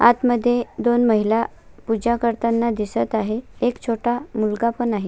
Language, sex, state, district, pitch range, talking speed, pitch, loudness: Marathi, female, Maharashtra, Sindhudurg, 220-240 Hz, 155 wpm, 235 Hz, -21 LUFS